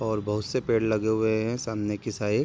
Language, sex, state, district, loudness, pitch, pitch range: Hindi, male, Bihar, Sitamarhi, -27 LUFS, 110 Hz, 105-110 Hz